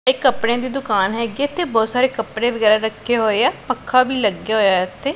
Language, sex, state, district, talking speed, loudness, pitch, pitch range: Punjabi, female, Punjab, Pathankot, 220 wpm, -18 LUFS, 230 Hz, 215-255 Hz